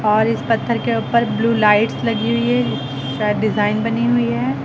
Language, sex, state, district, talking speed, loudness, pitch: Hindi, female, Uttar Pradesh, Lucknow, 195 wpm, -18 LUFS, 210 Hz